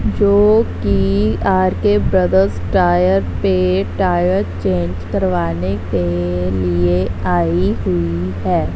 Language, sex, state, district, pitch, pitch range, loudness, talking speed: Hindi, female, Punjab, Fazilka, 90 Hz, 90-100 Hz, -16 LUFS, 95 wpm